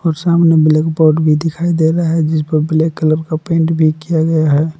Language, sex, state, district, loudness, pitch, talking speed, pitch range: Hindi, male, Jharkhand, Palamu, -13 LUFS, 160 Hz, 240 wpm, 155-165 Hz